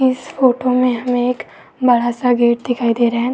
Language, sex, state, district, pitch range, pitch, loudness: Hindi, female, Uttar Pradesh, Etah, 240-250 Hz, 245 Hz, -16 LUFS